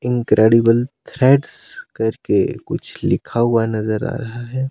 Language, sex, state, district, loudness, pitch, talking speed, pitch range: Hindi, male, Himachal Pradesh, Shimla, -18 LUFS, 120 Hz, 140 wpm, 115-135 Hz